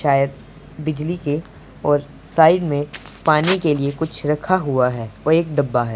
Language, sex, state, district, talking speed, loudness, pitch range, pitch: Hindi, male, Punjab, Pathankot, 170 wpm, -19 LUFS, 140-160 Hz, 150 Hz